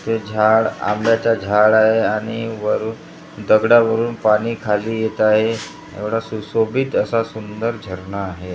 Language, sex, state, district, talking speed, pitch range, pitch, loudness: Marathi, male, Maharashtra, Gondia, 125 wpm, 105-115 Hz, 110 Hz, -18 LUFS